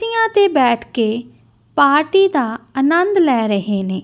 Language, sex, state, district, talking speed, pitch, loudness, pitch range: Punjabi, female, Punjab, Kapurthala, 150 wpm, 255 Hz, -15 LUFS, 210-345 Hz